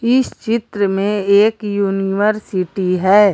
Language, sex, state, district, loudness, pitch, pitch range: Hindi, female, Jharkhand, Garhwa, -16 LUFS, 205 Hz, 195-215 Hz